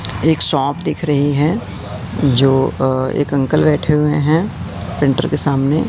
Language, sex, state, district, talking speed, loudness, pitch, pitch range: Hindi, male, Madhya Pradesh, Katni, 150 wpm, -16 LUFS, 140 Hz, 130-155 Hz